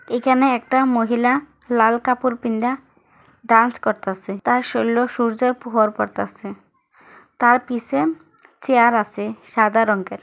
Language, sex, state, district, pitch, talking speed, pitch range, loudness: Bengali, female, West Bengal, Kolkata, 240 Hz, 110 wpm, 225-255 Hz, -19 LUFS